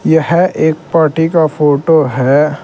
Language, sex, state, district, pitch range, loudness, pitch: Hindi, male, Uttar Pradesh, Saharanpur, 150-160 Hz, -11 LUFS, 160 Hz